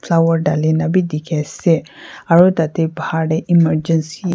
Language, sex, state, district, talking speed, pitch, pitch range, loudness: Nagamese, female, Nagaland, Kohima, 165 wpm, 165 Hz, 155-170 Hz, -16 LUFS